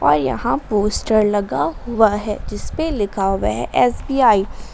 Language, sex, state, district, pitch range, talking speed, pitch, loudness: Hindi, female, Jharkhand, Garhwa, 205-240 Hz, 165 wpm, 210 Hz, -18 LUFS